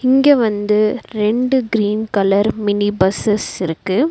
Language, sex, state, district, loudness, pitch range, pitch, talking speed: Tamil, female, Tamil Nadu, Nilgiris, -16 LUFS, 205-230 Hz, 210 Hz, 115 wpm